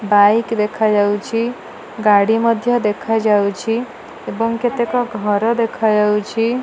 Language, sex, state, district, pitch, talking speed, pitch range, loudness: Odia, female, Odisha, Malkangiri, 225 Hz, 80 wpm, 210-230 Hz, -17 LUFS